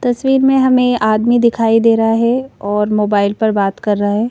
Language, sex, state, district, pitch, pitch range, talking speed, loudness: Hindi, female, Madhya Pradesh, Bhopal, 225 Hz, 210-245 Hz, 210 wpm, -13 LUFS